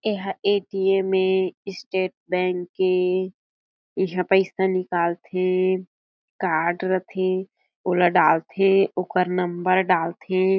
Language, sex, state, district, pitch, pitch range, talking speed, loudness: Chhattisgarhi, female, Chhattisgarh, Jashpur, 185 Hz, 180-190 Hz, 110 wpm, -22 LUFS